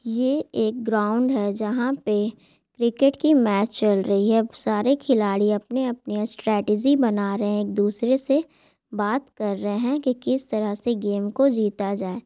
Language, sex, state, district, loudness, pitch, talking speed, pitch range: Hindi, female, Bihar, Gaya, -23 LUFS, 220 Hz, 175 wpm, 205-255 Hz